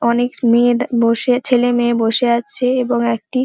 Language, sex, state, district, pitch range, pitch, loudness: Bengali, female, West Bengal, Paschim Medinipur, 235-250 Hz, 240 Hz, -15 LUFS